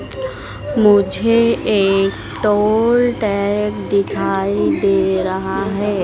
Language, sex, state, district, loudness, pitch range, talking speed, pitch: Hindi, female, Madhya Pradesh, Dhar, -16 LUFS, 190-210 Hz, 80 wpm, 200 Hz